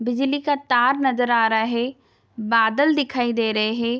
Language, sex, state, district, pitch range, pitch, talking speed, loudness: Hindi, female, Bihar, Darbhanga, 230-270 Hz, 245 Hz, 180 wpm, -20 LUFS